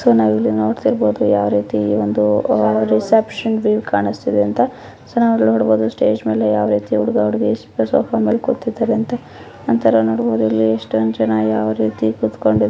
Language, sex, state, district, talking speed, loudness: Kannada, female, Karnataka, Raichur, 140 wpm, -17 LUFS